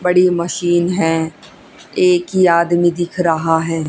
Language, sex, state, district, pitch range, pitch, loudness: Hindi, female, Haryana, Jhajjar, 165-180 Hz, 175 Hz, -15 LUFS